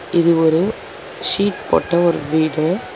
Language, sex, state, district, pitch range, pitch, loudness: Tamil, female, Tamil Nadu, Chennai, 160-220 Hz, 170 Hz, -17 LUFS